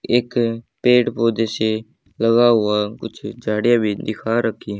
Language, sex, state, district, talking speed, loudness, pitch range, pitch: Hindi, male, Haryana, Charkhi Dadri, 125 wpm, -19 LUFS, 110-120 Hz, 115 Hz